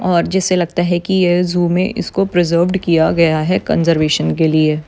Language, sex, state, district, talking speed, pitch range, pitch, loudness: Hindi, female, Maharashtra, Dhule, 195 wpm, 160-185 Hz, 175 Hz, -15 LUFS